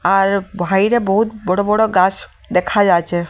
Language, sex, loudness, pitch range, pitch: Bengali, female, -16 LUFS, 180-205 Hz, 195 Hz